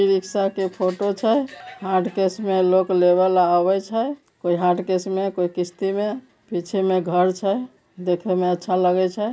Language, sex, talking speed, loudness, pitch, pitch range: Maithili, male, 150 wpm, -21 LUFS, 190 Hz, 180-200 Hz